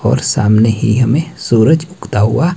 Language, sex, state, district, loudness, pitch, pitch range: Hindi, male, Himachal Pradesh, Shimla, -13 LUFS, 120 Hz, 110-160 Hz